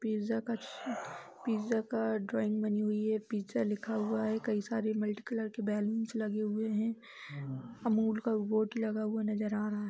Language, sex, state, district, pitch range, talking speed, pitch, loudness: Hindi, female, Bihar, Darbhanga, 210-225 Hz, 180 wpm, 215 Hz, -34 LUFS